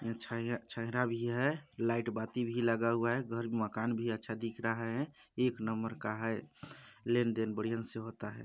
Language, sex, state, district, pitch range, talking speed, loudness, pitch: Hindi, male, Chhattisgarh, Balrampur, 115-120 Hz, 190 wpm, -36 LUFS, 115 Hz